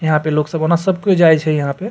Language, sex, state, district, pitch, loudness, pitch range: Maithili, male, Bihar, Supaul, 160 Hz, -15 LUFS, 155-175 Hz